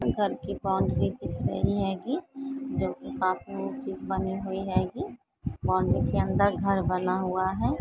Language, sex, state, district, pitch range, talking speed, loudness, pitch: Hindi, female, Goa, North and South Goa, 185-200 Hz, 140 wpm, -29 LUFS, 190 Hz